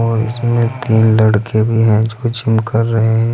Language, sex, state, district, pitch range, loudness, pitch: Hindi, male, Uttar Pradesh, Saharanpur, 110-115 Hz, -14 LUFS, 115 Hz